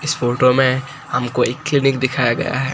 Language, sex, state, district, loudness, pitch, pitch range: Hindi, male, Gujarat, Gandhinagar, -17 LUFS, 130 Hz, 125-135 Hz